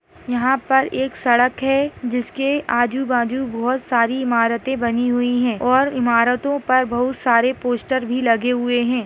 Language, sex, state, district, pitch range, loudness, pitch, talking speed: Hindi, female, Chhattisgarh, Rajnandgaon, 240-265 Hz, -19 LUFS, 245 Hz, 165 wpm